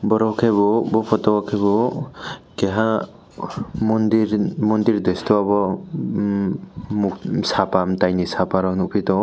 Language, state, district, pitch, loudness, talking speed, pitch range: Kokborok, Tripura, West Tripura, 105 Hz, -20 LUFS, 125 wpm, 95-110 Hz